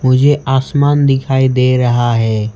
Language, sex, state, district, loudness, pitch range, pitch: Hindi, male, West Bengal, Alipurduar, -12 LUFS, 120-140 Hz, 130 Hz